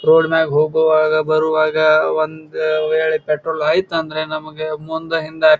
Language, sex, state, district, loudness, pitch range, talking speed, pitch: Kannada, male, Karnataka, Bijapur, -17 LUFS, 155-160 Hz, 140 wpm, 155 Hz